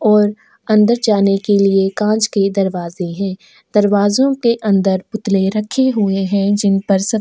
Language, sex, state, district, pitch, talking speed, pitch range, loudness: Hindi, female, Goa, North and South Goa, 205 Hz, 165 wpm, 195-215 Hz, -15 LUFS